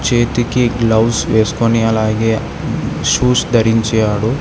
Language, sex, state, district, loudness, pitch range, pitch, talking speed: Telugu, male, Telangana, Hyderabad, -14 LUFS, 110-120 Hz, 115 Hz, 80 wpm